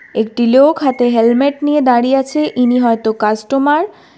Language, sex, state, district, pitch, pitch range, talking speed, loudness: Bengali, female, Karnataka, Bangalore, 250 Hz, 235-285 Hz, 160 wpm, -13 LUFS